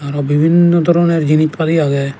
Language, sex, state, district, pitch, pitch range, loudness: Chakma, male, Tripura, Dhalai, 155 Hz, 145-170 Hz, -13 LUFS